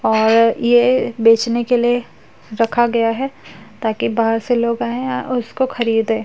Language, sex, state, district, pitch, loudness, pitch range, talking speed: Hindi, female, Uttar Pradesh, Jyotiba Phule Nagar, 235 Hz, -17 LUFS, 225-245 Hz, 155 wpm